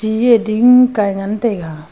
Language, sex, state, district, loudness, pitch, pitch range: Wancho, female, Arunachal Pradesh, Longding, -13 LUFS, 215 Hz, 195-235 Hz